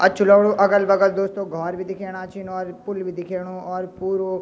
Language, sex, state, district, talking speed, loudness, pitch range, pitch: Garhwali, male, Uttarakhand, Tehri Garhwal, 205 wpm, -21 LUFS, 185-195 Hz, 190 Hz